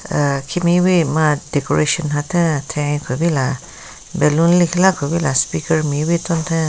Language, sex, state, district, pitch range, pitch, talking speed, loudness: Rengma, female, Nagaland, Kohima, 145-170 Hz, 155 Hz, 115 wpm, -17 LUFS